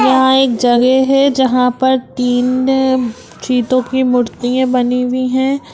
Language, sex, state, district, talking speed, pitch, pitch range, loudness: Hindi, female, Bihar, Lakhisarai, 135 wpm, 255 Hz, 250-260 Hz, -13 LUFS